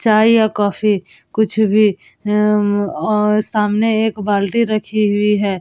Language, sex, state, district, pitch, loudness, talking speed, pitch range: Hindi, female, Bihar, Vaishali, 210 Hz, -16 LUFS, 130 wpm, 205-215 Hz